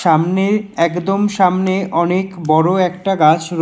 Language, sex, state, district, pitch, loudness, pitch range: Bengali, male, West Bengal, Alipurduar, 180 Hz, -15 LUFS, 165-190 Hz